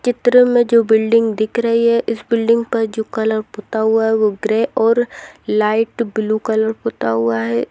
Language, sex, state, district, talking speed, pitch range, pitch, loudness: Hindi, female, Rajasthan, Churu, 195 wpm, 215-230 Hz, 225 Hz, -16 LUFS